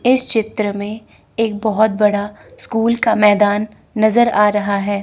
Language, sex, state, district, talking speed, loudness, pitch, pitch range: Hindi, female, Chandigarh, Chandigarh, 155 wpm, -16 LUFS, 215 Hz, 205-225 Hz